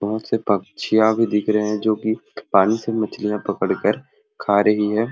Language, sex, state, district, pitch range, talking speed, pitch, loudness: Sadri, male, Chhattisgarh, Jashpur, 105-110 Hz, 200 wpm, 110 Hz, -20 LUFS